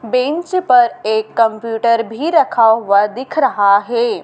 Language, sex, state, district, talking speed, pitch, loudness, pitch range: Hindi, female, Madhya Pradesh, Dhar, 140 wpm, 230 Hz, -14 LUFS, 220-250 Hz